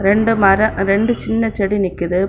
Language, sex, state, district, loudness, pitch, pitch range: Tamil, female, Tamil Nadu, Kanyakumari, -16 LUFS, 200 Hz, 195-225 Hz